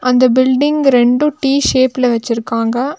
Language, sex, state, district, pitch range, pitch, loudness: Tamil, female, Tamil Nadu, Nilgiris, 245-275 Hz, 255 Hz, -13 LUFS